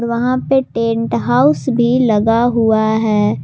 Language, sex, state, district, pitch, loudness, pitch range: Hindi, female, Jharkhand, Palamu, 235 Hz, -14 LUFS, 225-250 Hz